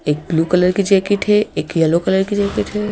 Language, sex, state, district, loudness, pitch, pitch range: Hindi, female, Madhya Pradesh, Bhopal, -16 LUFS, 190 Hz, 165-205 Hz